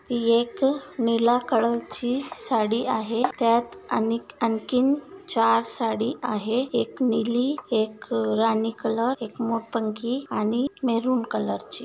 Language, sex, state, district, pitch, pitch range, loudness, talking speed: Marathi, female, Maharashtra, Nagpur, 235 Hz, 225-250 Hz, -25 LUFS, 120 wpm